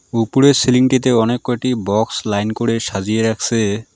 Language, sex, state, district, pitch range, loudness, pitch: Bengali, male, West Bengal, Alipurduar, 110-125 Hz, -16 LUFS, 115 Hz